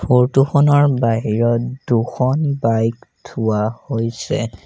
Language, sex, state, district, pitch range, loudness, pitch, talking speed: Assamese, male, Assam, Sonitpur, 115-135 Hz, -17 LUFS, 120 Hz, 90 wpm